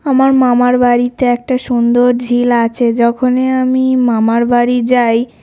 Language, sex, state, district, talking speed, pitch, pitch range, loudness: Bengali, male, West Bengal, North 24 Parganas, 130 wpm, 245 Hz, 240-255 Hz, -12 LUFS